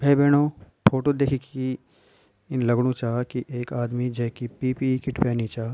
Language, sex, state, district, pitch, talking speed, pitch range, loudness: Garhwali, male, Uttarakhand, Tehri Garhwal, 125 Hz, 165 wpm, 120-135 Hz, -25 LUFS